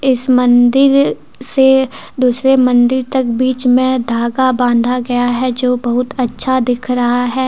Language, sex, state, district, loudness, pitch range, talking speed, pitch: Hindi, female, Jharkhand, Deoghar, -13 LUFS, 245-260 Hz, 145 wpm, 250 Hz